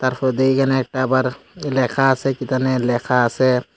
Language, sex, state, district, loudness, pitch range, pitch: Bengali, male, Tripura, Unakoti, -18 LUFS, 125-135 Hz, 130 Hz